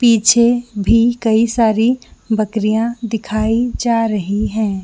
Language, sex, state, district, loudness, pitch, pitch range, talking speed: Hindi, female, Jharkhand, Jamtara, -15 LUFS, 225 Hz, 215-235 Hz, 110 wpm